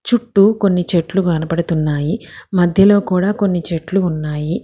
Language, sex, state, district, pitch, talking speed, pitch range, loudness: Telugu, female, Telangana, Hyderabad, 180 Hz, 115 wpm, 165-200 Hz, -16 LUFS